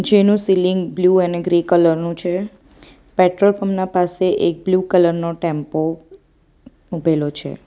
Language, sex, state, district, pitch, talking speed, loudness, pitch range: Gujarati, female, Gujarat, Valsad, 180 Hz, 150 wpm, -17 LUFS, 170-185 Hz